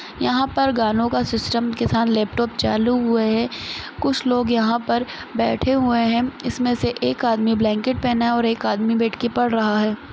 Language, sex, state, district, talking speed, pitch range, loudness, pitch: Hindi, female, Chhattisgarh, Rajnandgaon, 195 wpm, 225-245 Hz, -20 LUFS, 235 Hz